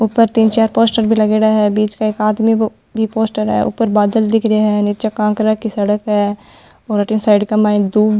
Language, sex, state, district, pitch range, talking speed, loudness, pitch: Marwari, female, Rajasthan, Nagaur, 210-220 Hz, 225 wpm, -14 LUFS, 215 Hz